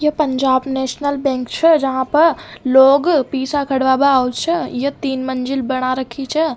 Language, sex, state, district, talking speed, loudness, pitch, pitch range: Rajasthani, female, Rajasthan, Nagaur, 165 wpm, -16 LUFS, 270 Hz, 260-295 Hz